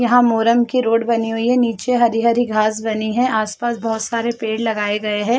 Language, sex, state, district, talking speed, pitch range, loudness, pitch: Hindi, female, Chhattisgarh, Rajnandgaon, 210 wpm, 220-240 Hz, -18 LUFS, 230 Hz